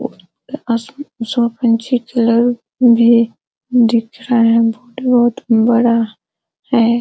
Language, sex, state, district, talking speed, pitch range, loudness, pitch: Hindi, female, Bihar, Araria, 105 wpm, 230-250 Hz, -14 LUFS, 235 Hz